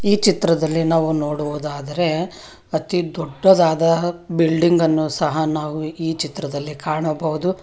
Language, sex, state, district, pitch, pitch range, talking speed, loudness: Kannada, female, Karnataka, Bangalore, 160 Hz, 155-170 Hz, 100 wpm, -19 LUFS